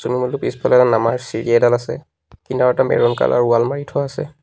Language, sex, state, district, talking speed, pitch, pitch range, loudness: Assamese, male, Assam, Sonitpur, 205 wpm, 125 Hz, 120-135 Hz, -17 LUFS